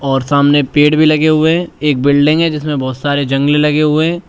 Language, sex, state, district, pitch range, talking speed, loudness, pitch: Hindi, male, Uttar Pradesh, Shamli, 140-155 Hz, 240 wpm, -12 LUFS, 150 Hz